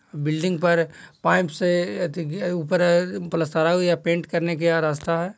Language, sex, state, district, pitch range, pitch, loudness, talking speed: Hindi, male, Bihar, Jahanabad, 165-180 Hz, 170 Hz, -22 LUFS, 145 wpm